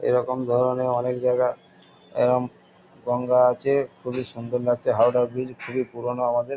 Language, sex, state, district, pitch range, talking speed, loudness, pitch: Bengali, male, West Bengal, Kolkata, 120-125 Hz, 135 wpm, -23 LUFS, 125 Hz